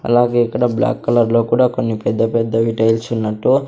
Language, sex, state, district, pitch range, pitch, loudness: Telugu, male, Andhra Pradesh, Sri Satya Sai, 115-120 Hz, 115 Hz, -16 LUFS